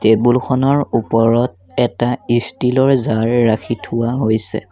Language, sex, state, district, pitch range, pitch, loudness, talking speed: Assamese, male, Assam, Sonitpur, 110-125 Hz, 120 Hz, -16 LUFS, 115 wpm